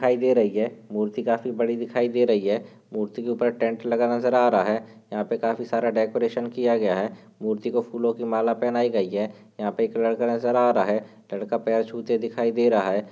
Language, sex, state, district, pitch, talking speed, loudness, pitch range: Hindi, male, Maharashtra, Sindhudurg, 115 Hz, 235 wpm, -24 LUFS, 110-120 Hz